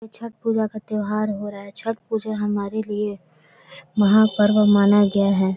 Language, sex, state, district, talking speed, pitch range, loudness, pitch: Maithili, female, Bihar, Samastipur, 160 wpm, 200-215 Hz, -20 LUFS, 210 Hz